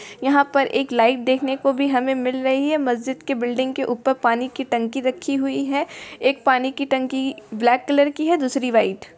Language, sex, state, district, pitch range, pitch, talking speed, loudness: Hindi, female, Bihar, East Champaran, 250-275 Hz, 265 Hz, 215 wpm, -21 LUFS